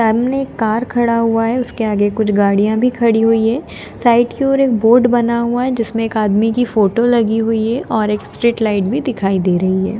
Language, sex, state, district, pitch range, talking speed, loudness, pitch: Hindi, female, Delhi, New Delhi, 215-240 Hz, 235 wpm, -15 LUFS, 225 Hz